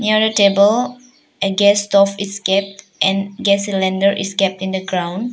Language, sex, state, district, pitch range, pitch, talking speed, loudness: English, female, Arunachal Pradesh, Papum Pare, 195-205 Hz, 200 Hz, 180 wpm, -16 LUFS